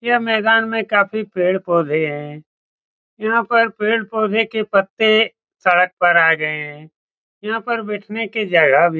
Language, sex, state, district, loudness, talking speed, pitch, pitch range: Hindi, male, Bihar, Saran, -17 LUFS, 155 wpm, 210 Hz, 175-225 Hz